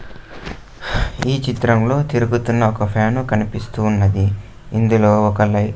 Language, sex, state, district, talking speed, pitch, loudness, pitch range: Telugu, male, Andhra Pradesh, Sri Satya Sai, 105 wpm, 110 Hz, -17 LUFS, 105-120 Hz